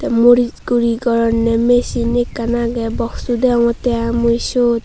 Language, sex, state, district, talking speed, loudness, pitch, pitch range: Chakma, female, Tripura, Unakoti, 150 wpm, -16 LUFS, 235 Hz, 230-245 Hz